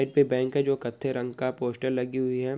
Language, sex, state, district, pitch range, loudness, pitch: Hindi, male, Andhra Pradesh, Krishna, 125-135 Hz, -28 LUFS, 130 Hz